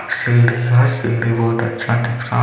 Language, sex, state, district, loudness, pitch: Hindi, male, Chhattisgarh, Balrampur, -16 LUFS, 120 Hz